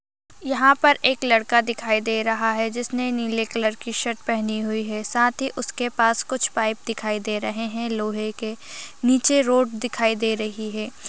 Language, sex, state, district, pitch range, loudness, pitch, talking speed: Hindi, female, Chhattisgarh, Sarguja, 220-245 Hz, -22 LUFS, 230 Hz, 185 wpm